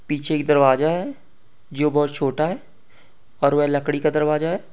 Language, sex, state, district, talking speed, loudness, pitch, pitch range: Hindi, male, Uttar Pradesh, Budaun, 175 wpm, -20 LUFS, 150 Hz, 145-155 Hz